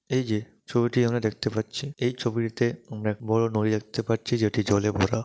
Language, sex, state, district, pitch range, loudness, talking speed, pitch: Bengali, male, West Bengal, Dakshin Dinajpur, 110-120 Hz, -26 LUFS, 195 wpm, 115 Hz